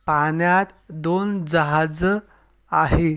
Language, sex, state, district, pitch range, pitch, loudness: Marathi, male, Maharashtra, Sindhudurg, 160-190 Hz, 170 Hz, -21 LUFS